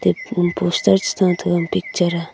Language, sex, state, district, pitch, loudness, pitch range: Wancho, female, Arunachal Pradesh, Longding, 175 Hz, -18 LUFS, 170-180 Hz